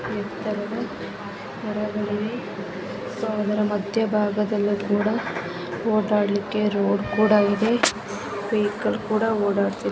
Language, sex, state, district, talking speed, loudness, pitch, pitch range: Kannada, female, Karnataka, Gulbarga, 65 wpm, -24 LUFS, 210 Hz, 205-215 Hz